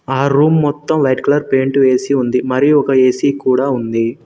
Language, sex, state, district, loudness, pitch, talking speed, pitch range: Telugu, male, Telangana, Mahabubabad, -14 LUFS, 135 Hz, 185 wpm, 130-140 Hz